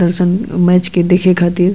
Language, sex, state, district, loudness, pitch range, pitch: Bhojpuri, female, Uttar Pradesh, Gorakhpur, -12 LUFS, 175-185 Hz, 180 Hz